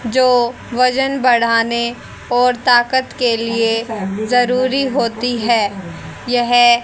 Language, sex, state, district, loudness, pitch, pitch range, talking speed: Hindi, female, Haryana, Charkhi Dadri, -15 LUFS, 240 Hz, 230-250 Hz, 95 wpm